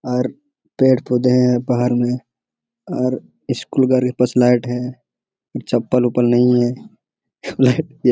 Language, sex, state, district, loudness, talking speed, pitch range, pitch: Hindi, male, Jharkhand, Sahebganj, -17 LUFS, 105 wpm, 125-130 Hz, 125 Hz